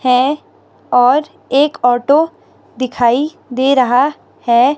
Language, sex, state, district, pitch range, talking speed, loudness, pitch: Hindi, female, Himachal Pradesh, Shimla, 250-295 Hz, 100 wpm, -14 LUFS, 260 Hz